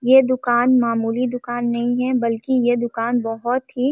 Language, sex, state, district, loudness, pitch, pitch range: Hindi, female, Chhattisgarh, Balrampur, -19 LUFS, 245 Hz, 235-255 Hz